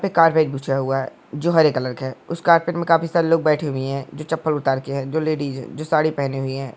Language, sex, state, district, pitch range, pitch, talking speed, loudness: Hindi, male, West Bengal, Jhargram, 135-165 Hz, 150 Hz, 275 wpm, -20 LUFS